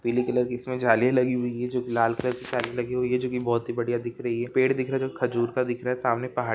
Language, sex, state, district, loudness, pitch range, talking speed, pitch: Hindi, male, Maharashtra, Pune, -26 LUFS, 120-125 Hz, 310 wpm, 125 Hz